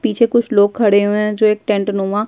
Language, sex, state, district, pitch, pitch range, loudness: Hindi, female, Uttarakhand, Tehri Garhwal, 210 Hz, 205-225 Hz, -15 LUFS